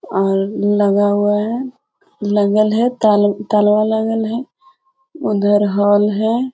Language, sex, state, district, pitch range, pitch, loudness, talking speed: Hindi, female, Bihar, Jamui, 205-230 Hz, 210 Hz, -16 LUFS, 100 wpm